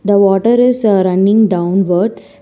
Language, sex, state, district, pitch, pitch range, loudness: English, female, Telangana, Hyderabad, 200 Hz, 190-220 Hz, -12 LUFS